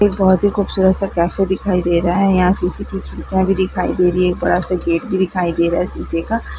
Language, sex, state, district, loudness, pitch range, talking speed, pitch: Hindi, female, Chhattisgarh, Korba, -17 LUFS, 175-195 Hz, 255 wpm, 185 Hz